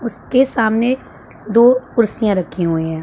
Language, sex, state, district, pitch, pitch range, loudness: Hindi, female, Punjab, Pathankot, 230 Hz, 185-245 Hz, -16 LUFS